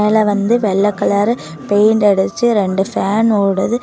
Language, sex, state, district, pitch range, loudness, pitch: Tamil, female, Tamil Nadu, Namakkal, 200-220 Hz, -14 LUFS, 205 Hz